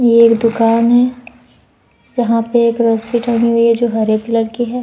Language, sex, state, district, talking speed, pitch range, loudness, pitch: Hindi, female, Uttar Pradesh, Muzaffarnagar, 200 wpm, 230-240 Hz, -13 LUFS, 230 Hz